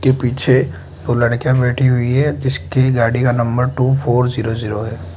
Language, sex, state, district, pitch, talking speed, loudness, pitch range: Hindi, male, Mizoram, Aizawl, 125 Hz, 185 wpm, -16 LUFS, 115-130 Hz